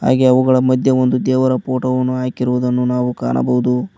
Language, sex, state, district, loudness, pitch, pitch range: Kannada, male, Karnataka, Koppal, -16 LUFS, 125 Hz, 125-130 Hz